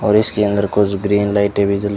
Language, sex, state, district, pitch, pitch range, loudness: Hindi, male, Rajasthan, Bikaner, 100 Hz, 100-105 Hz, -16 LUFS